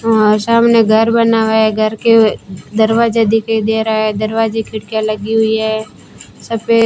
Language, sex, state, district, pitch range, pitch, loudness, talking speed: Hindi, female, Rajasthan, Bikaner, 215-225 Hz, 220 Hz, -13 LUFS, 175 wpm